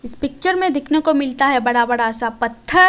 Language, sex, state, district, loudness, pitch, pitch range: Hindi, female, Odisha, Malkangiri, -17 LUFS, 275 Hz, 240-310 Hz